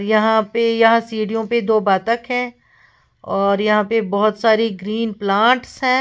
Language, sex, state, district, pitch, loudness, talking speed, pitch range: Hindi, female, Uttar Pradesh, Lalitpur, 220 Hz, -17 LUFS, 160 wpm, 210-230 Hz